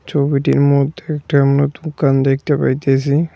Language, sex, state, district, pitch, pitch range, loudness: Bengali, male, West Bengal, Cooch Behar, 140 Hz, 140-150 Hz, -16 LUFS